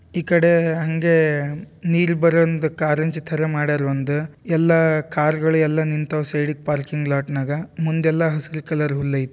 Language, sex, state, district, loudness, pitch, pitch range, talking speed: Kannada, male, Karnataka, Dharwad, -19 LUFS, 155 Hz, 150-165 Hz, 140 wpm